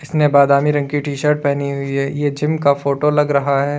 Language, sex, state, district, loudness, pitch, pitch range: Hindi, male, Uttar Pradesh, Lalitpur, -16 LUFS, 145 Hz, 140-150 Hz